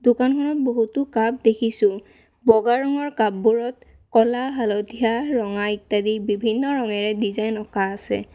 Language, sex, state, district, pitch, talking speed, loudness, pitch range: Assamese, female, Assam, Kamrup Metropolitan, 225 Hz, 115 wpm, -21 LUFS, 210-245 Hz